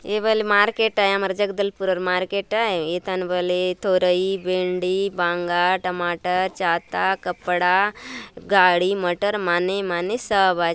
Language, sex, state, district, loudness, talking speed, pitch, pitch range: Halbi, female, Chhattisgarh, Bastar, -21 LUFS, 135 wpm, 185 Hz, 180-200 Hz